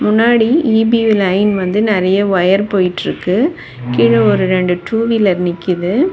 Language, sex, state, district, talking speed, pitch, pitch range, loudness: Tamil, female, Tamil Nadu, Chennai, 125 wpm, 195 Hz, 180-225 Hz, -13 LUFS